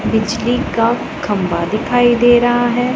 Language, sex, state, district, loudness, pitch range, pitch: Hindi, female, Punjab, Pathankot, -15 LUFS, 220-245 Hz, 240 Hz